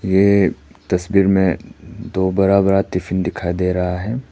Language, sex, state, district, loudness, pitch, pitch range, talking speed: Hindi, male, Arunachal Pradesh, Papum Pare, -17 LUFS, 95 Hz, 90-100 Hz, 155 wpm